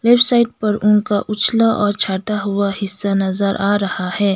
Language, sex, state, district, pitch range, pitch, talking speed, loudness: Hindi, female, Sikkim, Gangtok, 200-215 Hz, 205 Hz, 180 wpm, -16 LUFS